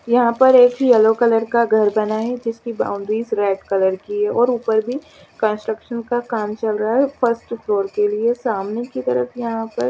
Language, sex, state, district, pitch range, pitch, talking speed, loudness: Hindi, female, Chandigarh, Chandigarh, 210-240 Hz, 225 Hz, 205 wpm, -18 LUFS